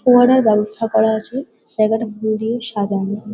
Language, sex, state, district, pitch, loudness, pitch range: Bengali, female, West Bengal, Kolkata, 220 Hz, -17 LUFS, 215-230 Hz